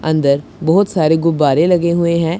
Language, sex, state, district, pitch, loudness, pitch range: Hindi, male, Punjab, Pathankot, 165 Hz, -14 LUFS, 155-170 Hz